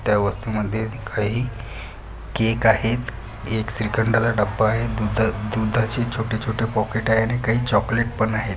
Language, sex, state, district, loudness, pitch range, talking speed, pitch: Marathi, male, Maharashtra, Pune, -22 LUFS, 110-115 Hz, 135 wpm, 110 Hz